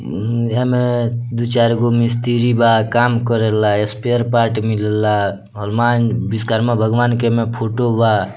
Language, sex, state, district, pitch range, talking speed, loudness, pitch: Bhojpuri, male, Bihar, Muzaffarpur, 110-120 Hz, 145 wpm, -16 LUFS, 115 Hz